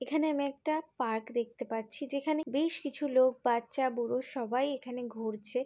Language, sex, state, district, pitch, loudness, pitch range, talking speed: Bengali, female, West Bengal, Jhargram, 255 Hz, -33 LUFS, 240-285 Hz, 160 wpm